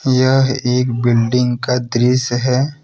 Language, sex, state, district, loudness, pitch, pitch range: Hindi, male, Jharkhand, Deoghar, -15 LUFS, 125 Hz, 120-130 Hz